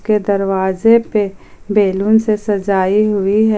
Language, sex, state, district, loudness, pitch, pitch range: Hindi, female, Jharkhand, Ranchi, -15 LUFS, 205 Hz, 195-215 Hz